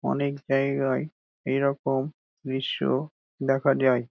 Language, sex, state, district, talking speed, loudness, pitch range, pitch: Bengali, male, West Bengal, Dakshin Dinajpur, 100 wpm, -26 LUFS, 135-140 Hz, 135 Hz